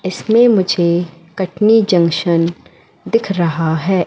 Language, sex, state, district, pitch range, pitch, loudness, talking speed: Hindi, female, Madhya Pradesh, Katni, 170-200 Hz, 180 Hz, -14 LUFS, 105 wpm